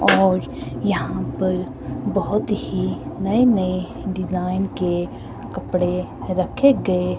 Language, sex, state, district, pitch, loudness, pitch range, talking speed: Hindi, female, Himachal Pradesh, Shimla, 185 Hz, -21 LUFS, 175-190 Hz, 90 wpm